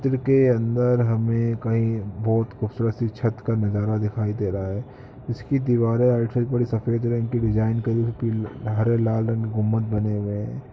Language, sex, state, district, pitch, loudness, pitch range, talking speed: Hindi, male, Jharkhand, Sahebganj, 115 Hz, -23 LUFS, 110-120 Hz, 190 wpm